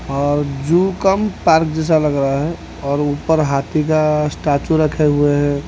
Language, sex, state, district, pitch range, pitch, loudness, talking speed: Hindi, male, Odisha, Khordha, 145-160 Hz, 150 Hz, -16 LUFS, 170 wpm